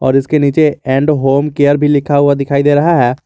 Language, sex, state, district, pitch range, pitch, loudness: Hindi, male, Jharkhand, Garhwa, 140-150 Hz, 145 Hz, -11 LUFS